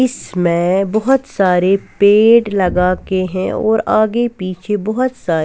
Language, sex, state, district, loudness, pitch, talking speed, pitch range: Hindi, female, Bihar, West Champaran, -15 LUFS, 200 Hz, 145 wpm, 185-220 Hz